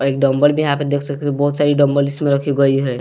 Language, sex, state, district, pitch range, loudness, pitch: Hindi, male, Bihar, West Champaran, 140-145 Hz, -16 LUFS, 140 Hz